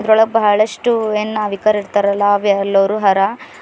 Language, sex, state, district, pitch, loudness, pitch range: Kannada, female, Karnataka, Bidar, 210 Hz, -15 LUFS, 200-220 Hz